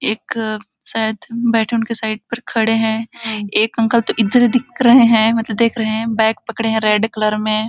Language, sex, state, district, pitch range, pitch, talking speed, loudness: Hindi, female, Chhattisgarh, Balrampur, 220-230 Hz, 225 Hz, 210 wpm, -16 LUFS